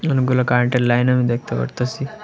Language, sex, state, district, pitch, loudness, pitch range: Bengali, male, Tripura, West Tripura, 125 Hz, -18 LUFS, 120-130 Hz